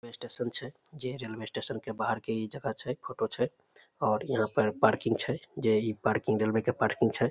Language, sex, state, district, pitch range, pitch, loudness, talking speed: Maithili, male, Bihar, Samastipur, 110-125 Hz, 115 Hz, -31 LUFS, 215 wpm